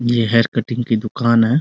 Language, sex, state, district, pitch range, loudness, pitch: Hindi, male, Bihar, Muzaffarpur, 115-120 Hz, -17 LUFS, 115 Hz